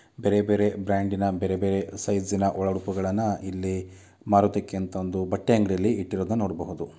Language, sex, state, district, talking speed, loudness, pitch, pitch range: Kannada, male, Karnataka, Dakshina Kannada, 135 wpm, -26 LUFS, 100 Hz, 95-100 Hz